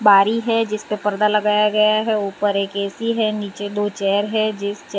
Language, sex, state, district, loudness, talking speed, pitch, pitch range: Hindi, female, Gujarat, Valsad, -19 LUFS, 230 wpm, 210 Hz, 200-215 Hz